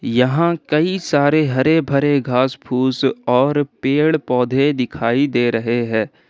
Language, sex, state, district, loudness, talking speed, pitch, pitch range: Hindi, male, Jharkhand, Ranchi, -17 LUFS, 135 wpm, 135 Hz, 125-150 Hz